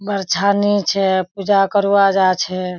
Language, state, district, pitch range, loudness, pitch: Surjapuri, Bihar, Kishanganj, 185-200 Hz, -16 LUFS, 195 Hz